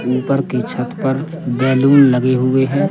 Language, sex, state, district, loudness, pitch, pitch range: Hindi, male, Madhya Pradesh, Katni, -15 LUFS, 130 Hz, 130-140 Hz